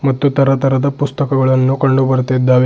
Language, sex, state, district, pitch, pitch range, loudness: Kannada, male, Karnataka, Bidar, 135 Hz, 130-140 Hz, -14 LUFS